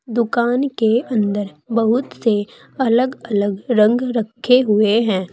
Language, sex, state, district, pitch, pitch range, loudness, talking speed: Hindi, female, Uttar Pradesh, Saharanpur, 230 Hz, 210-245 Hz, -18 LUFS, 125 wpm